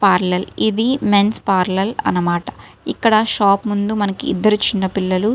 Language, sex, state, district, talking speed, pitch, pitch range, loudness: Telugu, female, Telangana, Karimnagar, 145 wpm, 200 Hz, 190-215 Hz, -17 LUFS